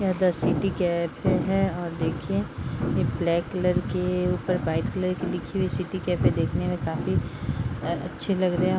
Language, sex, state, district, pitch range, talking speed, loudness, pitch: Hindi, female, Bihar, Bhagalpur, 170-185 Hz, 185 wpm, -26 LUFS, 180 Hz